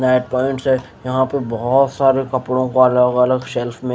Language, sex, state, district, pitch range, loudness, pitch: Hindi, male, Haryana, Jhajjar, 125-130 Hz, -17 LUFS, 130 Hz